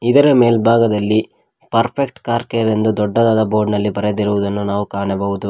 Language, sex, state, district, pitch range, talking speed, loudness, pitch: Kannada, male, Karnataka, Koppal, 105-115 Hz, 130 wpm, -16 LUFS, 110 Hz